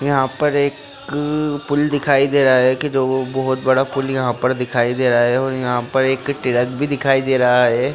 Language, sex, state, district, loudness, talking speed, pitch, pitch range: Hindi, male, Bihar, Jahanabad, -17 LUFS, 220 wpm, 130 Hz, 125-140 Hz